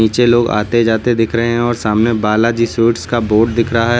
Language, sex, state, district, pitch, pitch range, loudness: Hindi, male, Uttar Pradesh, Lucknow, 115 Hz, 110-120 Hz, -14 LUFS